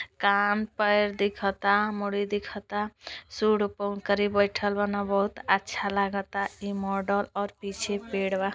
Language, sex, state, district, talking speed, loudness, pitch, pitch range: Bhojpuri, female, Uttar Pradesh, Deoria, 135 wpm, -27 LUFS, 200 Hz, 200-205 Hz